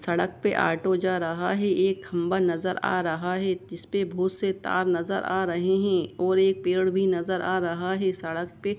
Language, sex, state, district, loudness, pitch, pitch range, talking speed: Hindi, male, Jharkhand, Sahebganj, -26 LUFS, 185 Hz, 180-190 Hz, 210 wpm